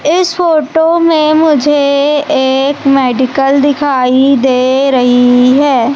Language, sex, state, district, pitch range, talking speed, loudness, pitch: Hindi, male, Madhya Pradesh, Umaria, 260-300 Hz, 100 wpm, -9 LUFS, 280 Hz